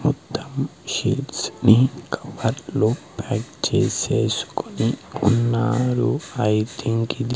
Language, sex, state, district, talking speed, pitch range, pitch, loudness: Telugu, male, Andhra Pradesh, Sri Satya Sai, 80 wpm, 110-125 Hz, 120 Hz, -22 LUFS